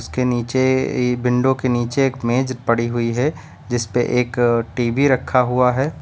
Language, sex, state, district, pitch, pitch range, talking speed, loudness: Hindi, male, Uttar Pradesh, Lucknow, 125 Hz, 120-130 Hz, 180 wpm, -19 LUFS